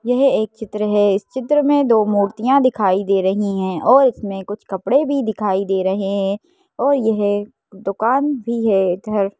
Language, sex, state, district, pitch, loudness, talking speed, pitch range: Hindi, female, Madhya Pradesh, Bhopal, 210 Hz, -18 LUFS, 180 wpm, 195-255 Hz